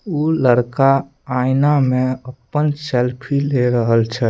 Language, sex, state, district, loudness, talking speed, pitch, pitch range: Maithili, male, Bihar, Samastipur, -17 LUFS, 125 wpm, 130 Hz, 125-145 Hz